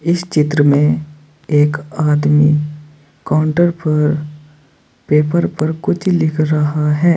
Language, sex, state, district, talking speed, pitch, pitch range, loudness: Hindi, male, Uttar Pradesh, Saharanpur, 110 wpm, 150 Hz, 150-155 Hz, -15 LUFS